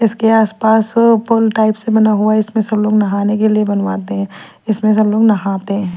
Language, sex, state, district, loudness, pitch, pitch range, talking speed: Hindi, female, Maharashtra, Mumbai Suburban, -13 LUFS, 215 Hz, 205-220 Hz, 220 wpm